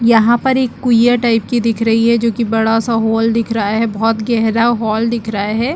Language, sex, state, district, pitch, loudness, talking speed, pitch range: Hindi, female, Chhattisgarh, Bastar, 230 Hz, -14 LUFS, 240 wpm, 225-235 Hz